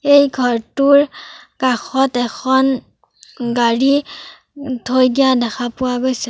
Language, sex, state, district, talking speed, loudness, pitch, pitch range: Assamese, female, Assam, Sonitpur, 95 wpm, -16 LUFS, 260 Hz, 245-280 Hz